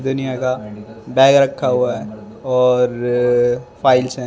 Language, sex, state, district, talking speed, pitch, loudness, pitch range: Hindi, male, Delhi, New Delhi, 110 wpm, 125 Hz, -16 LUFS, 120-130 Hz